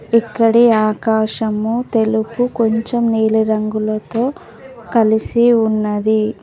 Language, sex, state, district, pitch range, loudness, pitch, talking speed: Telugu, female, Telangana, Mahabubabad, 215-230 Hz, -16 LUFS, 220 Hz, 65 wpm